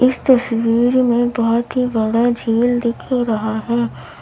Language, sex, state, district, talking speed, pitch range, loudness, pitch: Hindi, female, Uttar Pradesh, Lalitpur, 140 wpm, 230-245 Hz, -17 LUFS, 235 Hz